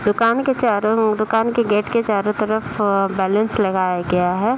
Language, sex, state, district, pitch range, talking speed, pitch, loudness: Hindi, female, Bihar, Saharsa, 200-225 Hz, 185 wpm, 215 Hz, -18 LUFS